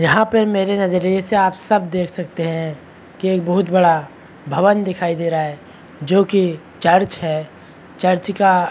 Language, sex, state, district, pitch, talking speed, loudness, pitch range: Hindi, male, Chhattisgarh, Bastar, 180 Hz, 180 wpm, -17 LUFS, 165-195 Hz